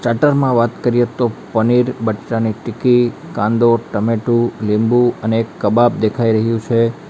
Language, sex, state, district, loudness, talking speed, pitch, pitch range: Gujarati, male, Gujarat, Valsad, -16 LUFS, 145 wpm, 115 Hz, 110-120 Hz